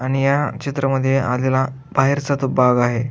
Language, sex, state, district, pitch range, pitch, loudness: Marathi, male, Maharashtra, Aurangabad, 130-135 Hz, 135 Hz, -18 LUFS